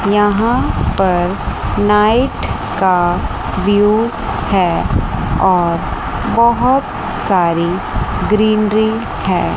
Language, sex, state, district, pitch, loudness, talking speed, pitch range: Hindi, female, Chandigarh, Chandigarh, 210 Hz, -15 LUFS, 70 wpm, 185-220 Hz